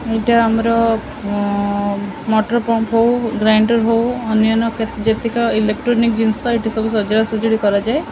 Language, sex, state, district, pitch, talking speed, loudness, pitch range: Odia, female, Odisha, Khordha, 225 Hz, 140 wpm, -16 LUFS, 220-230 Hz